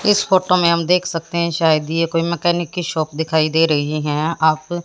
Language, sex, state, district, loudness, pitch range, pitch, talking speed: Hindi, female, Haryana, Jhajjar, -17 LUFS, 160-175 Hz, 165 Hz, 235 wpm